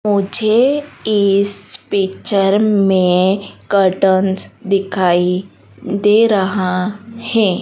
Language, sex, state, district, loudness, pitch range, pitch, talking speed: Hindi, female, Madhya Pradesh, Dhar, -15 LUFS, 190-210 Hz, 195 Hz, 70 wpm